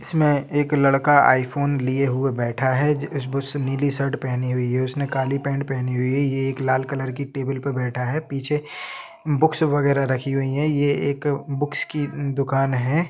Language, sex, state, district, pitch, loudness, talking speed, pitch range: Hindi, male, Jharkhand, Jamtara, 140 Hz, -22 LUFS, 185 wpm, 130-145 Hz